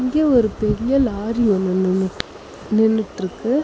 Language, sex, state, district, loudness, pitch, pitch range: Tamil, female, Tamil Nadu, Chennai, -19 LUFS, 220 Hz, 190-245 Hz